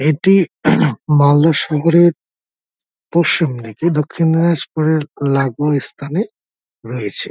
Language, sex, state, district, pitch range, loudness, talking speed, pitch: Bengali, male, West Bengal, Dakshin Dinajpur, 140-165 Hz, -15 LUFS, 80 wpm, 155 Hz